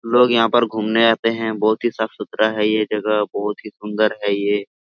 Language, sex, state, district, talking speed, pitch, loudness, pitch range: Hindi, male, Jharkhand, Sahebganj, 210 wpm, 110 Hz, -19 LUFS, 105-115 Hz